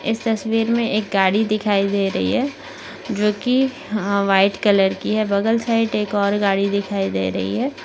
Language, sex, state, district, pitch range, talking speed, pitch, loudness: Hindi, female, Maharashtra, Nagpur, 200-225 Hz, 190 wpm, 210 Hz, -19 LUFS